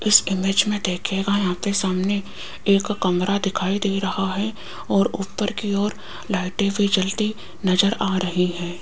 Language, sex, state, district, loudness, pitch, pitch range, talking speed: Hindi, female, Rajasthan, Jaipur, -22 LUFS, 195 Hz, 185-205 Hz, 155 wpm